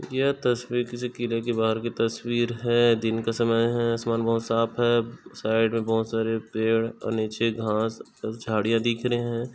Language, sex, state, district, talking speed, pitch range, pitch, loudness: Hindi, male, Chhattisgarh, Raigarh, 190 wpm, 115-120 Hz, 115 Hz, -25 LUFS